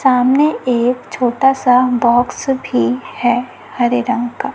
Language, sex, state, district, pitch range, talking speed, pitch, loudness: Hindi, female, Chhattisgarh, Raipur, 240-260 Hz, 130 wpm, 250 Hz, -15 LUFS